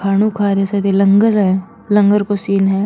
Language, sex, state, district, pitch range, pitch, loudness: Marwari, female, Rajasthan, Nagaur, 195-205 Hz, 200 Hz, -14 LUFS